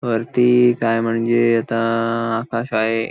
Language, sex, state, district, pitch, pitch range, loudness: Marathi, male, Maharashtra, Sindhudurg, 115 Hz, 115-120 Hz, -18 LUFS